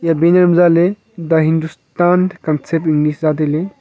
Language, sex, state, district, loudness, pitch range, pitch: Wancho, male, Arunachal Pradesh, Longding, -14 LUFS, 155-175 Hz, 165 Hz